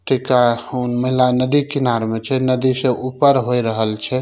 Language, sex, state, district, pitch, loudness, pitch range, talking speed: Maithili, male, Bihar, Samastipur, 125 Hz, -17 LUFS, 120-130 Hz, 155 wpm